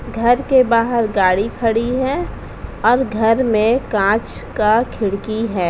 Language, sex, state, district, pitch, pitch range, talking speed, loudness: Hindi, female, Uttar Pradesh, Jalaun, 225 Hz, 215-240 Hz, 135 wpm, -17 LUFS